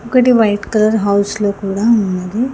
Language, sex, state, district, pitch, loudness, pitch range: Telugu, female, Telangana, Hyderabad, 215 Hz, -14 LUFS, 200-230 Hz